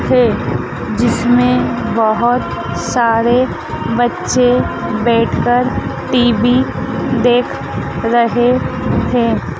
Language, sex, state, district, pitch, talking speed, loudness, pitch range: Hindi, female, Madhya Pradesh, Dhar, 240 Hz, 60 wpm, -14 LUFS, 235-245 Hz